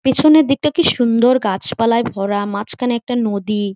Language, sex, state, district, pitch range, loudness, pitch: Bengali, female, West Bengal, Jhargram, 205-260 Hz, -15 LUFS, 235 Hz